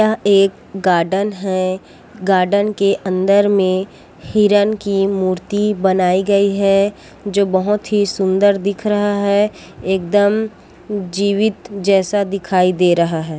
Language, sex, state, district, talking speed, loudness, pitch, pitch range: Chhattisgarhi, female, Chhattisgarh, Korba, 120 wpm, -16 LUFS, 200 Hz, 190-205 Hz